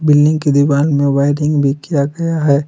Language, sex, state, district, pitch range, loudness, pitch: Hindi, male, Jharkhand, Palamu, 140-150 Hz, -14 LUFS, 145 Hz